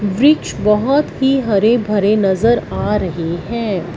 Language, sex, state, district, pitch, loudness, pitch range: Hindi, female, Punjab, Fazilka, 210 Hz, -15 LUFS, 195-240 Hz